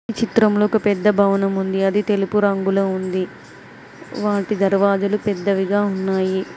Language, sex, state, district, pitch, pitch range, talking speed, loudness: Telugu, female, Telangana, Mahabubabad, 200 Hz, 195-210 Hz, 120 wpm, -19 LUFS